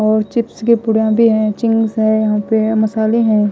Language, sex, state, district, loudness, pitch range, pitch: Hindi, female, Chhattisgarh, Raipur, -14 LUFS, 215-225 Hz, 220 Hz